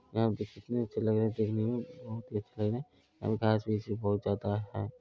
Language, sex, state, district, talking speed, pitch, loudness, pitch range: Maithili, male, Bihar, Araria, 290 wpm, 110 Hz, -33 LUFS, 105-115 Hz